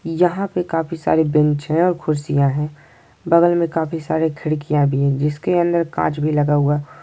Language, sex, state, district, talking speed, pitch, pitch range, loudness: Hindi, male, Chhattisgarh, Sukma, 190 wpm, 155 Hz, 150-170 Hz, -18 LUFS